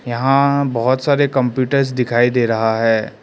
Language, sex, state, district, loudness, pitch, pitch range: Hindi, male, Arunachal Pradesh, Lower Dibang Valley, -16 LUFS, 125 Hz, 115-135 Hz